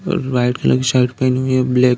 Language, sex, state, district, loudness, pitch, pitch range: Hindi, male, Uttar Pradesh, Deoria, -16 LUFS, 130 Hz, 125-130 Hz